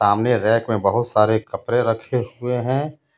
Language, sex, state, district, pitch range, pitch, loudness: Hindi, male, Jharkhand, Ranchi, 110-125 Hz, 120 Hz, -20 LUFS